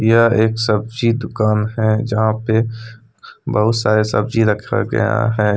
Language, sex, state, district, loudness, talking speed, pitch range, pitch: Hindi, male, Jharkhand, Deoghar, -17 LUFS, 130 wpm, 110-115 Hz, 110 Hz